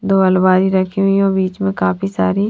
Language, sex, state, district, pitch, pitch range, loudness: Hindi, female, Punjab, Fazilka, 190 Hz, 185-195 Hz, -15 LUFS